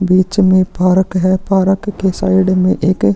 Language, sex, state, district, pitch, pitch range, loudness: Hindi, male, Chhattisgarh, Kabirdham, 185 Hz, 185-190 Hz, -13 LUFS